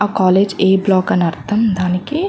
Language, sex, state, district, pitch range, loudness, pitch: Telugu, female, Andhra Pradesh, Chittoor, 185-205 Hz, -15 LUFS, 190 Hz